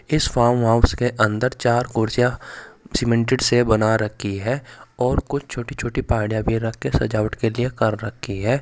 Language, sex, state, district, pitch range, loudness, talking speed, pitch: Hindi, male, Uttar Pradesh, Saharanpur, 110-125 Hz, -21 LUFS, 180 wpm, 120 Hz